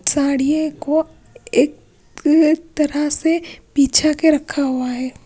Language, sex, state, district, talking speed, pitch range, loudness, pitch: Hindi, female, Punjab, Pathankot, 115 wpm, 285-320 Hz, -18 LUFS, 305 Hz